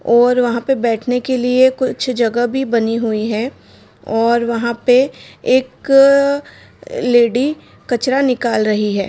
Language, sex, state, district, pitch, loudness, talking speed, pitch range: Hindi, female, Bihar, Madhepura, 245 Hz, -15 LUFS, 140 wpm, 235-260 Hz